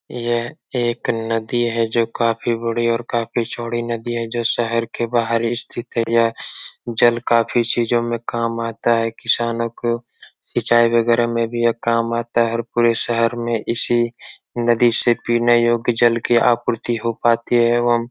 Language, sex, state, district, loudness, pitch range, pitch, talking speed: Hindi, male, Uttar Pradesh, Etah, -19 LUFS, 115-120 Hz, 120 Hz, 175 wpm